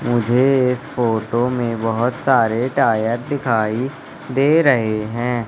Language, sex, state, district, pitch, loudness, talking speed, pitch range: Hindi, male, Madhya Pradesh, Katni, 120 Hz, -18 LUFS, 120 wpm, 115-130 Hz